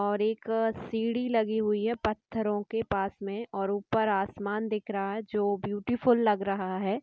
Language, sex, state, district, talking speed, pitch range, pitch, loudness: Hindi, female, Chhattisgarh, Sukma, 170 wpm, 200-225 Hz, 210 Hz, -30 LUFS